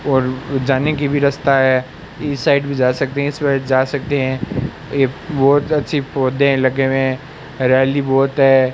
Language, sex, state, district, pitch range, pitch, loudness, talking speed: Hindi, male, Rajasthan, Bikaner, 130-140 Hz, 135 Hz, -16 LUFS, 180 wpm